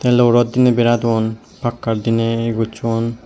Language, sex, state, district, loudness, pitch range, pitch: Chakma, male, Tripura, West Tripura, -17 LUFS, 115-120 Hz, 115 Hz